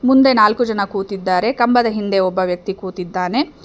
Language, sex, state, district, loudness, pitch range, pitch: Kannada, female, Karnataka, Bangalore, -17 LUFS, 185-240 Hz, 200 Hz